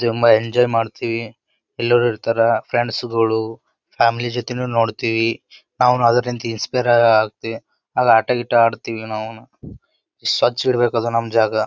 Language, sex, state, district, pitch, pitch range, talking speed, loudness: Kannada, male, Karnataka, Gulbarga, 115 Hz, 115-120 Hz, 115 wpm, -18 LUFS